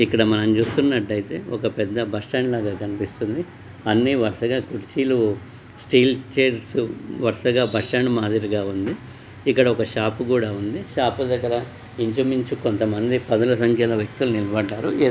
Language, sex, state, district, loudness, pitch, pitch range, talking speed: Telugu, male, Andhra Pradesh, Guntur, -22 LUFS, 115 Hz, 110-125 Hz, 125 wpm